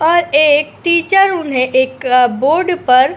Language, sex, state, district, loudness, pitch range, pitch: Hindi, female, Uttar Pradesh, Etah, -12 LUFS, 260-345 Hz, 295 Hz